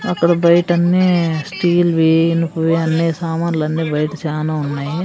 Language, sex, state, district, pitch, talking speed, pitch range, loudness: Telugu, female, Andhra Pradesh, Sri Satya Sai, 165 Hz, 120 wpm, 160-175 Hz, -16 LUFS